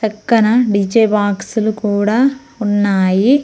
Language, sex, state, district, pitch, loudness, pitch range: Telugu, female, Telangana, Mahabubabad, 215 Hz, -14 LUFS, 205-230 Hz